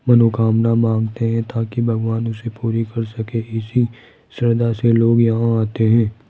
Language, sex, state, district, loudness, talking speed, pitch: Hindi, male, Rajasthan, Jaipur, -18 LUFS, 155 wpm, 115 Hz